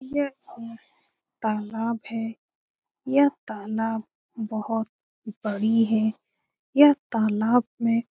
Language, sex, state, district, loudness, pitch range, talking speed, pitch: Hindi, female, Bihar, Lakhisarai, -25 LUFS, 220-240 Hz, 90 wpm, 225 Hz